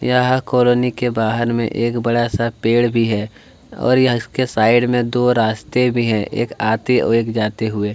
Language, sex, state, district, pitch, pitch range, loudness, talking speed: Hindi, male, Chhattisgarh, Kabirdham, 120 Hz, 110-125 Hz, -17 LUFS, 190 wpm